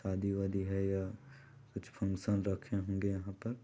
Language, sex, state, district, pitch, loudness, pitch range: Hindi, male, Chhattisgarh, Balrampur, 100 Hz, -37 LUFS, 95-110 Hz